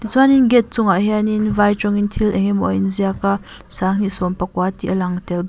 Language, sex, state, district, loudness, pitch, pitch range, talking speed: Mizo, female, Mizoram, Aizawl, -17 LUFS, 200 Hz, 185-210 Hz, 195 wpm